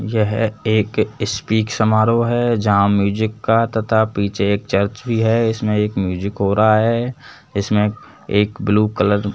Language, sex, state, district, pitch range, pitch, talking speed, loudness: Hindi, male, Rajasthan, Jaipur, 100-110 Hz, 110 Hz, 160 wpm, -18 LUFS